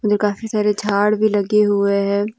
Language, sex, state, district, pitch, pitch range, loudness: Hindi, female, Jharkhand, Deoghar, 210 Hz, 200-210 Hz, -17 LUFS